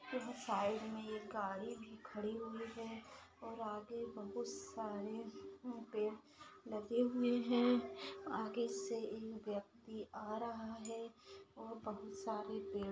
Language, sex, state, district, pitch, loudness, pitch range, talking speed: Hindi, female, Maharashtra, Pune, 220 Hz, -43 LUFS, 210-235 Hz, 130 wpm